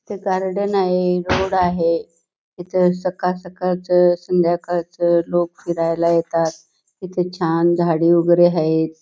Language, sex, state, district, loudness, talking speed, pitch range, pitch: Marathi, female, Karnataka, Belgaum, -18 LUFS, 95 wpm, 170-180 Hz, 175 Hz